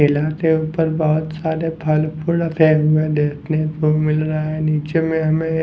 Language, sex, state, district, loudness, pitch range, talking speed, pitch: Hindi, male, Haryana, Jhajjar, -18 LUFS, 155-160 Hz, 140 wpm, 155 Hz